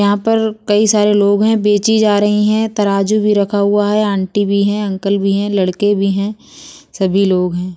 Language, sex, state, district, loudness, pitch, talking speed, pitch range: Bundeli, female, Uttar Pradesh, Budaun, -14 LUFS, 205 Hz, 210 wpm, 200-210 Hz